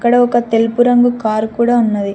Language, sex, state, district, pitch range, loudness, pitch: Telugu, female, Telangana, Mahabubabad, 220-245 Hz, -13 LUFS, 235 Hz